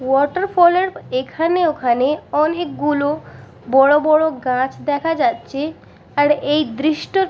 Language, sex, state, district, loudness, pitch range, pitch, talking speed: Bengali, female, West Bengal, Purulia, -17 LUFS, 275-325 Hz, 295 Hz, 115 wpm